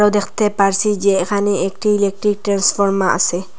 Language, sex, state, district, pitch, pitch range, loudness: Bengali, female, Assam, Hailakandi, 200 Hz, 195-205 Hz, -16 LUFS